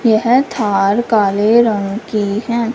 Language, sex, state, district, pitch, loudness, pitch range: Hindi, female, Punjab, Fazilka, 220 Hz, -14 LUFS, 205-235 Hz